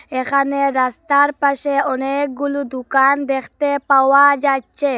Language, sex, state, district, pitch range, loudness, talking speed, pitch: Bengali, female, Assam, Hailakandi, 270-285 Hz, -16 LUFS, 95 wpm, 280 Hz